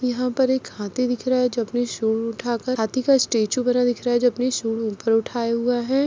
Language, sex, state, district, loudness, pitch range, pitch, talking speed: Hindi, female, Chhattisgarh, Kabirdham, -22 LUFS, 230-250 Hz, 245 Hz, 265 wpm